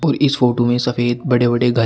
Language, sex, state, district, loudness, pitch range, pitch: Hindi, male, Uttar Pradesh, Shamli, -16 LUFS, 120-125 Hz, 120 Hz